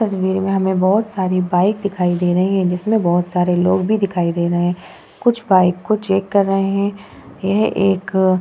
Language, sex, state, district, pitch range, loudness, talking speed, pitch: Hindi, female, Bihar, Vaishali, 180-200 Hz, -17 LUFS, 220 wpm, 190 Hz